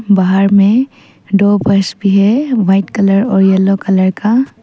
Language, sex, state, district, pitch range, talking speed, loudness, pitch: Hindi, female, Arunachal Pradesh, Papum Pare, 195-215 Hz, 155 wpm, -11 LUFS, 200 Hz